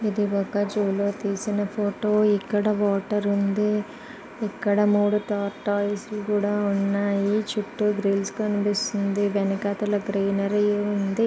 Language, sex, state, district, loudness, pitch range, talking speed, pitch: Telugu, female, Andhra Pradesh, Guntur, -24 LUFS, 200-210 Hz, 110 wpm, 205 Hz